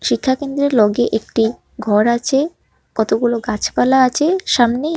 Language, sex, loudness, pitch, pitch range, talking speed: Bengali, male, -16 LUFS, 245 Hz, 225-280 Hz, 110 wpm